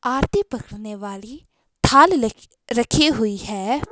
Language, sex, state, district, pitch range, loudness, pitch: Hindi, female, Himachal Pradesh, Shimla, 205-255 Hz, -18 LUFS, 225 Hz